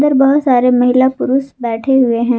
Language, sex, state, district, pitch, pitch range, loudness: Hindi, female, Jharkhand, Garhwa, 260 Hz, 245-270 Hz, -13 LUFS